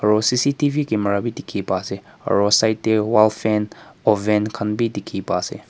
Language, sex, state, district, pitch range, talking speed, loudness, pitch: Nagamese, male, Nagaland, Kohima, 105-115 Hz, 190 wpm, -20 LUFS, 110 Hz